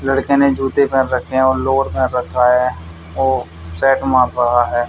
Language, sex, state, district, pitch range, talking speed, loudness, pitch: Hindi, male, Haryana, Charkhi Dadri, 120-135 Hz, 170 wpm, -15 LUFS, 130 Hz